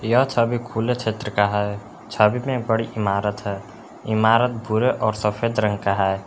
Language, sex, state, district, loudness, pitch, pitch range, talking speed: Hindi, male, Jharkhand, Palamu, -21 LUFS, 110 Hz, 105-115 Hz, 180 wpm